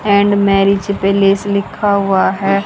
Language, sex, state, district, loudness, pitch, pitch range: Hindi, female, Haryana, Charkhi Dadri, -13 LUFS, 200 Hz, 195-200 Hz